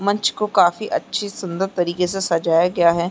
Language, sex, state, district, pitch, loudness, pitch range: Hindi, female, Chhattisgarh, Bastar, 180 Hz, -19 LUFS, 170-200 Hz